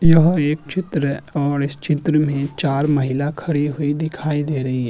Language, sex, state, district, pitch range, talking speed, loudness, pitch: Hindi, male, Uttarakhand, Tehri Garhwal, 140-155 Hz, 195 wpm, -19 LUFS, 150 Hz